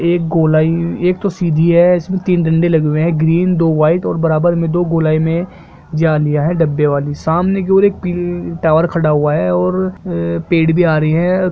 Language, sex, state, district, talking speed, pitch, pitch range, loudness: Hindi, male, Jharkhand, Jamtara, 200 wpm, 165 Hz, 155-175 Hz, -14 LUFS